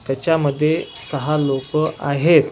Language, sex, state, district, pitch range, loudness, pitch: Marathi, male, Maharashtra, Washim, 140-155 Hz, -19 LUFS, 150 Hz